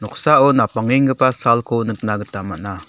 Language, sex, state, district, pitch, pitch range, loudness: Garo, male, Meghalaya, South Garo Hills, 110 Hz, 100-125 Hz, -17 LUFS